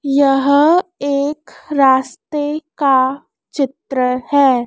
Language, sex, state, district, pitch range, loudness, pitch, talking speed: Hindi, female, Madhya Pradesh, Dhar, 265-295 Hz, -15 LUFS, 280 Hz, 75 wpm